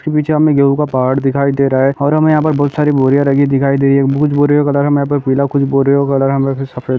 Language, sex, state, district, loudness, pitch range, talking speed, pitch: Hindi, male, Uttar Pradesh, Ghazipur, -13 LUFS, 135-145 Hz, 225 wpm, 140 Hz